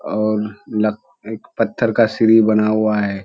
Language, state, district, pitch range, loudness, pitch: Surjapuri, Bihar, Kishanganj, 105-110 Hz, -17 LUFS, 110 Hz